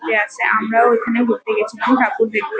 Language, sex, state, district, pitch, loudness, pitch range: Bengali, female, West Bengal, Kolkata, 230 Hz, -16 LUFS, 220-245 Hz